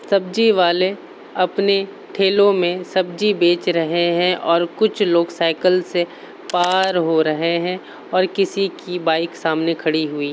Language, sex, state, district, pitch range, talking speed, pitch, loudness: Hindi, male, Uttar Pradesh, Varanasi, 170-190 Hz, 145 wpm, 180 Hz, -18 LUFS